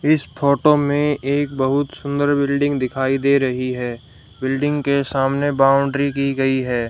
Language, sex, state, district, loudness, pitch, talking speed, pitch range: Hindi, male, Haryana, Rohtak, -19 LUFS, 140 Hz, 155 wpm, 135-145 Hz